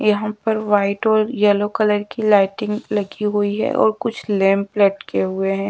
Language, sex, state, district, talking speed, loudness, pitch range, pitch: Hindi, female, Bihar, Patna, 180 wpm, -18 LUFS, 200-215 Hz, 205 Hz